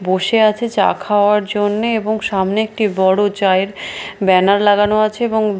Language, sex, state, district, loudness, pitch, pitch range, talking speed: Bengali, female, Bihar, Katihar, -15 LUFS, 205 Hz, 195-215 Hz, 150 wpm